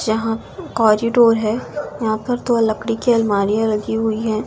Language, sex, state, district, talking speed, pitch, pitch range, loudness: Hindi, female, Delhi, New Delhi, 160 wpm, 225 Hz, 215-230 Hz, -18 LUFS